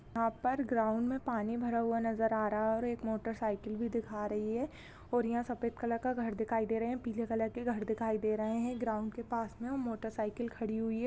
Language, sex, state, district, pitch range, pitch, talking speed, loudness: Hindi, female, Bihar, Madhepura, 220-235 Hz, 230 Hz, 235 wpm, -35 LUFS